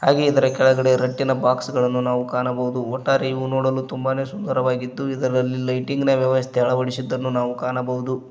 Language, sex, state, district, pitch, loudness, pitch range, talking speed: Kannada, male, Karnataka, Koppal, 130 Hz, -21 LUFS, 125-130 Hz, 145 wpm